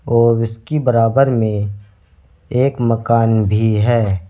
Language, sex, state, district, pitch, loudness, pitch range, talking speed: Hindi, male, Uttar Pradesh, Saharanpur, 115 Hz, -16 LUFS, 105-120 Hz, 110 wpm